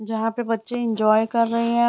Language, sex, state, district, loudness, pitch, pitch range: Hindi, female, Bihar, Begusarai, -22 LUFS, 230 Hz, 220-235 Hz